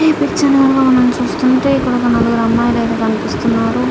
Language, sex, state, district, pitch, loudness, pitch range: Telugu, female, Andhra Pradesh, Srikakulam, 250 Hz, -13 LUFS, 230-270 Hz